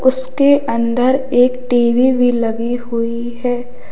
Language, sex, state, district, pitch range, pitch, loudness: Hindi, male, Uttar Pradesh, Lalitpur, 235-260 Hz, 245 Hz, -15 LUFS